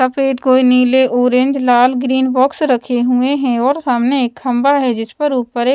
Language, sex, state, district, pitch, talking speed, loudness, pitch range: Hindi, female, Odisha, Sambalpur, 255 Hz, 200 wpm, -14 LUFS, 250-265 Hz